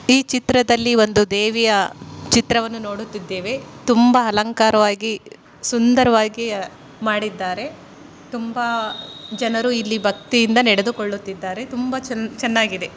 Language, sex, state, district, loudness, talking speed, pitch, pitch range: Kannada, female, Karnataka, Shimoga, -19 LUFS, 80 wpm, 225 Hz, 210-240 Hz